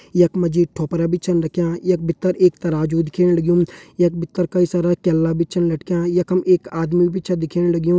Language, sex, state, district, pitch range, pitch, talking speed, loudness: Hindi, male, Uttarakhand, Uttarkashi, 170-180 Hz, 175 Hz, 210 wpm, -19 LUFS